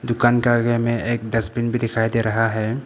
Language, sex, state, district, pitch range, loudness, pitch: Hindi, male, Arunachal Pradesh, Papum Pare, 115-120 Hz, -20 LUFS, 115 Hz